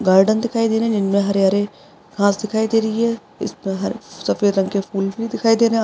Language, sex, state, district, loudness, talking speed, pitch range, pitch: Hindi, female, Maharashtra, Aurangabad, -19 LUFS, 245 wpm, 195-225 Hz, 210 Hz